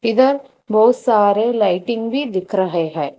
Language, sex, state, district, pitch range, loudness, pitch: Hindi, female, Telangana, Hyderabad, 190-245 Hz, -17 LUFS, 220 Hz